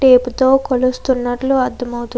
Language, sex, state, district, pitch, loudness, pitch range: Telugu, female, Andhra Pradesh, Krishna, 255 Hz, -16 LUFS, 245-265 Hz